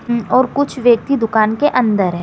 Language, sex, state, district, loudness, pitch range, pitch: Hindi, female, Bihar, Kishanganj, -15 LUFS, 220-255 Hz, 240 Hz